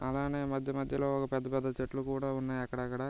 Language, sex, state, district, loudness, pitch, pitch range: Telugu, male, Andhra Pradesh, Visakhapatnam, -35 LUFS, 135 Hz, 130-135 Hz